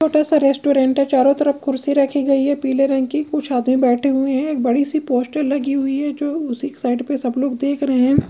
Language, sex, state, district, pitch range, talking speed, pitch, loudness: Hindi, female, Bihar, East Champaran, 265-290 Hz, 245 wpm, 275 Hz, -18 LUFS